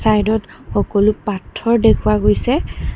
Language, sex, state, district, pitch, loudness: Assamese, female, Assam, Kamrup Metropolitan, 210 Hz, -17 LUFS